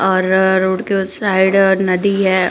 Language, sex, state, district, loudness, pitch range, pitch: Hindi, female, Uttarakhand, Uttarkashi, -14 LUFS, 190-195 Hz, 190 Hz